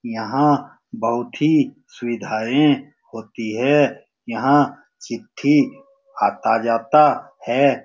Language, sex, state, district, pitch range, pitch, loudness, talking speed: Hindi, male, Bihar, Saran, 115-150 Hz, 140 Hz, -19 LUFS, 75 wpm